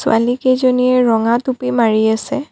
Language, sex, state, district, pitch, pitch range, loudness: Assamese, female, Assam, Kamrup Metropolitan, 250 Hz, 225-255 Hz, -15 LUFS